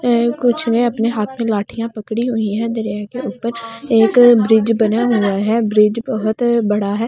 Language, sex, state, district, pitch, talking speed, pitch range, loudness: Hindi, female, Delhi, New Delhi, 230 Hz, 180 wpm, 215-235 Hz, -16 LUFS